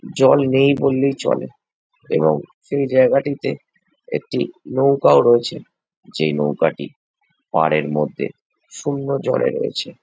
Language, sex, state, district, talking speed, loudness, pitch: Bengali, male, West Bengal, Jalpaiguri, 110 wpm, -18 LUFS, 130 Hz